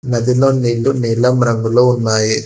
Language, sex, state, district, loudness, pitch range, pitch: Telugu, male, Telangana, Hyderabad, -14 LUFS, 115-125 Hz, 120 Hz